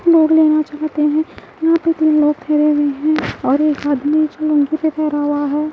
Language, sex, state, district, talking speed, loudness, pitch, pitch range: Hindi, female, Bihar, Katihar, 170 wpm, -16 LUFS, 305 Hz, 295-310 Hz